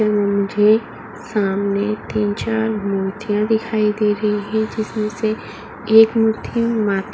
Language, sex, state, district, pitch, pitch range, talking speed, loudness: Hindi, female, Uttar Pradesh, Muzaffarnagar, 210 Hz, 200-220 Hz, 125 wpm, -18 LUFS